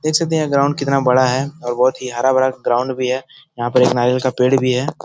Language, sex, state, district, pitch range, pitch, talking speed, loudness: Hindi, male, Bihar, Jahanabad, 125-140 Hz, 130 Hz, 260 wpm, -17 LUFS